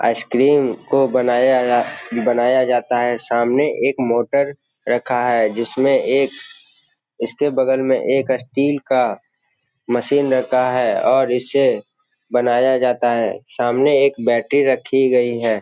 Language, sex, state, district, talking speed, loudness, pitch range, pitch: Hindi, male, Bihar, Jamui, 125 wpm, -17 LUFS, 120-135 Hz, 125 Hz